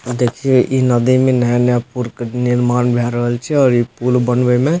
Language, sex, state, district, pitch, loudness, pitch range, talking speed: Maithili, male, Bihar, Supaul, 125 Hz, -15 LUFS, 120-130 Hz, 210 wpm